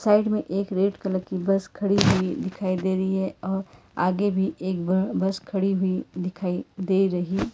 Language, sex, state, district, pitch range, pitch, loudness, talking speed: Hindi, female, Karnataka, Bangalore, 185-195 Hz, 190 Hz, -25 LUFS, 190 wpm